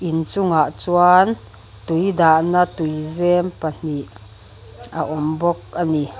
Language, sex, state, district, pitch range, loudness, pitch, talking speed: Mizo, female, Mizoram, Aizawl, 145-175 Hz, -18 LUFS, 160 Hz, 105 wpm